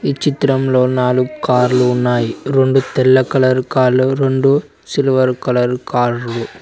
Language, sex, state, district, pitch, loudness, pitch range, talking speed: Telugu, male, Telangana, Mahabubabad, 130 Hz, -15 LUFS, 125-135 Hz, 125 wpm